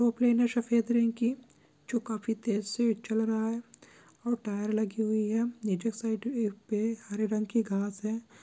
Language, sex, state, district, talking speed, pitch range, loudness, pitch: Hindi, female, Rajasthan, Churu, 155 wpm, 215-235 Hz, -31 LUFS, 225 Hz